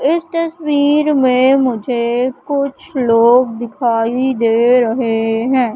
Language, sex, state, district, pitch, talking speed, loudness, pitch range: Hindi, female, Madhya Pradesh, Katni, 250 Hz, 105 wpm, -14 LUFS, 235-280 Hz